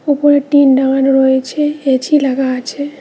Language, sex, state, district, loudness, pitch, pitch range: Bengali, female, West Bengal, Cooch Behar, -13 LUFS, 270 Hz, 265-290 Hz